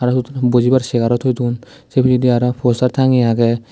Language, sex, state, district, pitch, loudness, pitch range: Chakma, male, Tripura, Dhalai, 125 Hz, -15 LUFS, 120-130 Hz